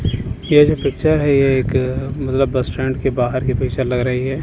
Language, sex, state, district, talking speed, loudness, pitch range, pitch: Hindi, male, Chandigarh, Chandigarh, 215 wpm, -17 LUFS, 130-135 Hz, 130 Hz